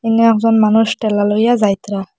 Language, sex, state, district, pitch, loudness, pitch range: Bengali, male, Assam, Hailakandi, 220 Hz, -14 LUFS, 205-225 Hz